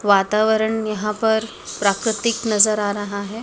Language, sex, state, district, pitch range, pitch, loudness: Hindi, female, Madhya Pradesh, Dhar, 205-220 Hz, 215 Hz, -19 LUFS